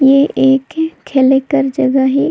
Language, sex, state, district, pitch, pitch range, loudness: Sadri, female, Chhattisgarh, Jashpur, 270 Hz, 265-285 Hz, -13 LUFS